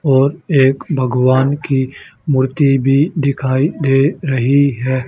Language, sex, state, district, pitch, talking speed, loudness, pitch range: Hindi, male, Haryana, Charkhi Dadri, 135 Hz, 120 wpm, -14 LUFS, 130-140 Hz